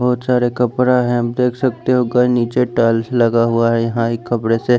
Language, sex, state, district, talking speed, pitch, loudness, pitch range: Hindi, male, Chandigarh, Chandigarh, 215 wpm, 120 Hz, -16 LUFS, 115-125 Hz